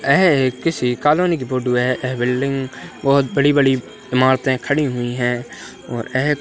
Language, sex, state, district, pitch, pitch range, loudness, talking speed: Hindi, male, Uttarakhand, Uttarkashi, 130 Hz, 125-140 Hz, -18 LUFS, 175 wpm